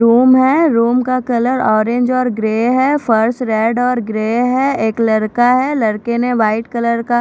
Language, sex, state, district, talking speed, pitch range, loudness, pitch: Hindi, female, Odisha, Khordha, 185 wpm, 220-255 Hz, -14 LUFS, 235 Hz